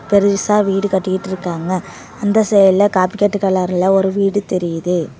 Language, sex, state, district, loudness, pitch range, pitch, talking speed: Tamil, female, Tamil Nadu, Namakkal, -16 LUFS, 185-200 Hz, 195 Hz, 115 wpm